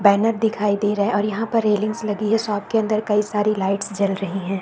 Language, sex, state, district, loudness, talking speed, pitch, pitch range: Hindi, female, Uttar Pradesh, Deoria, -21 LUFS, 260 wpm, 210 Hz, 200-215 Hz